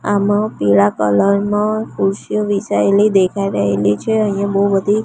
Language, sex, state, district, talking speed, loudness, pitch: Gujarati, female, Gujarat, Gandhinagar, 140 wpm, -15 LUFS, 200 Hz